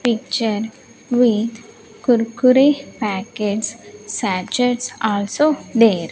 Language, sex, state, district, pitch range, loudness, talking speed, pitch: English, female, Andhra Pradesh, Sri Satya Sai, 210-245 Hz, -18 LUFS, 70 wpm, 225 Hz